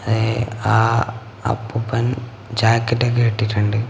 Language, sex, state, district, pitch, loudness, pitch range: Malayalam, male, Kerala, Kasaragod, 115 Hz, -19 LUFS, 110-115 Hz